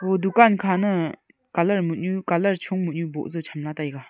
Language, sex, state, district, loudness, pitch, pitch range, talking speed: Wancho, female, Arunachal Pradesh, Longding, -23 LUFS, 180 Hz, 165-195 Hz, 175 wpm